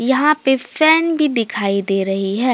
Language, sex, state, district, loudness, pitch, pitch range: Hindi, female, Jharkhand, Deoghar, -16 LUFS, 250 Hz, 200-300 Hz